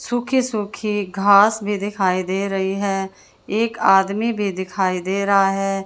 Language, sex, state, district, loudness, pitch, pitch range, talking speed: Hindi, female, Haryana, Jhajjar, -19 LUFS, 200 Hz, 195-210 Hz, 155 wpm